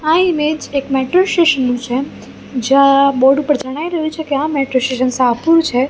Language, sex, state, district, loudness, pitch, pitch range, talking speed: Gujarati, female, Gujarat, Gandhinagar, -14 LUFS, 275 Hz, 260-315 Hz, 195 wpm